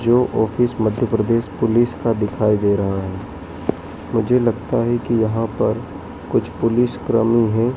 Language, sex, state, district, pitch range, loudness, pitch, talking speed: Hindi, male, Madhya Pradesh, Dhar, 110-120 Hz, -19 LUFS, 115 Hz, 155 wpm